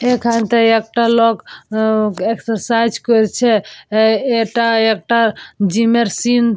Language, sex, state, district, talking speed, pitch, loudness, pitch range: Bengali, female, West Bengal, Purulia, 120 wpm, 230 Hz, -15 LUFS, 220-235 Hz